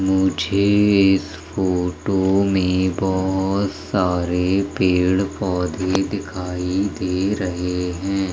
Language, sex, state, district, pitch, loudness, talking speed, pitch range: Hindi, male, Madhya Pradesh, Umaria, 95 Hz, -20 LUFS, 85 wpm, 90-95 Hz